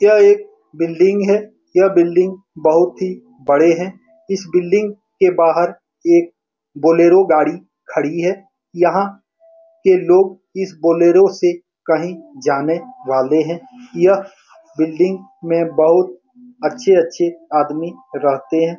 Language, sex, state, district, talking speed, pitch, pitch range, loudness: Hindi, male, Bihar, Saran, 120 wpm, 180 Hz, 165-205 Hz, -16 LUFS